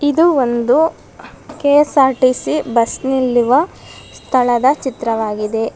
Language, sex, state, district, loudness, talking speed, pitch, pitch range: Kannada, female, Karnataka, Bangalore, -15 LUFS, 75 wpm, 260 Hz, 240-290 Hz